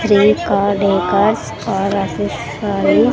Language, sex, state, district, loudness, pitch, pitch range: Telugu, female, Andhra Pradesh, Sri Satya Sai, -16 LUFS, 200 Hz, 195-205 Hz